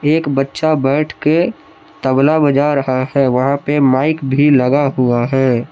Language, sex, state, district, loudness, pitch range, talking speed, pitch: Hindi, male, Jharkhand, Palamu, -14 LUFS, 130-150 Hz, 155 wpm, 140 Hz